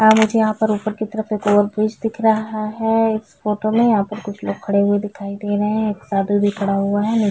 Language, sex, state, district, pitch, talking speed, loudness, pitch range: Hindi, female, Chhattisgarh, Bilaspur, 215 Hz, 270 wpm, -19 LUFS, 205-220 Hz